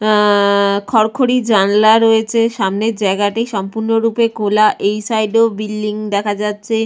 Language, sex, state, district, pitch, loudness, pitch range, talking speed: Bengali, female, West Bengal, Purulia, 215 Hz, -14 LUFS, 205-225 Hz, 130 wpm